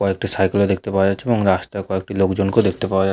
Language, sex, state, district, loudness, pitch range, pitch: Bengali, male, West Bengal, Jhargram, -19 LUFS, 95-100 Hz, 95 Hz